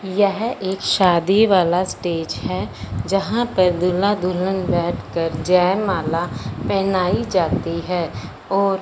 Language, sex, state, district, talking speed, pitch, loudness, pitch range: Hindi, female, Punjab, Fazilka, 115 wpm, 180 Hz, -19 LUFS, 170-195 Hz